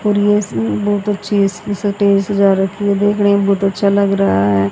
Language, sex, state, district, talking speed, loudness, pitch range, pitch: Hindi, female, Haryana, Charkhi Dadri, 230 wpm, -15 LUFS, 195-205 Hz, 200 Hz